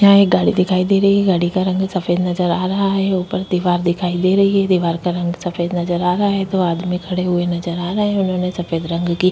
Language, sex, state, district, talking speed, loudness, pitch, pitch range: Hindi, female, Chhattisgarh, Kabirdham, 260 wpm, -17 LUFS, 180 Hz, 175-190 Hz